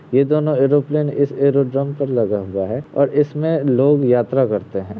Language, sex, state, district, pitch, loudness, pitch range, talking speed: Hindi, male, Uttar Pradesh, Varanasi, 140 Hz, -17 LUFS, 125-145 Hz, 180 wpm